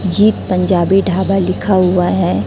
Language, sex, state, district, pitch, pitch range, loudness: Hindi, female, Chhattisgarh, Raipur, 185 Hz, 180-195 Hz, -13 LUFS